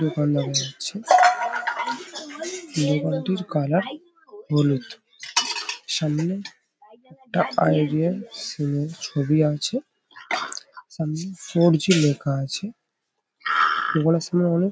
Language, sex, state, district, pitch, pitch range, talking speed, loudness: Bengali, male, West Bengal, Paschim Medinipur, 175 Hz, 150-245 Hz, 90 wpm, -23 LUFS